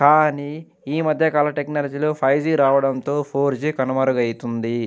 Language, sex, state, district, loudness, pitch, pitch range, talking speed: Telugu, male, Andhra Pradesh, Anantapur, -20 LUFS, 145 Hz, 135-150 Hz, 135 wpm